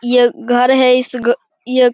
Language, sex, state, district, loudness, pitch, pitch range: Hindi, male, Bihar, Begusarai, -13 LUFS, 250 Hz, 245-255 Hz